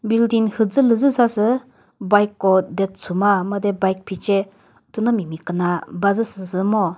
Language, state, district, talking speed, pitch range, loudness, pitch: Chakhesang, Nagaland, Dimapur, 130 wpm, 190-225 Hz, -19 LUFS, 200 Hz